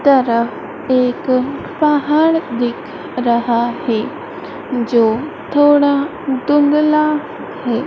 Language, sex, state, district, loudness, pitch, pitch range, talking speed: Hindi, female, Madhya Pradesh, Dhar, -16 LUFS, 280 Hz, 240-300 Hz, 75 wpm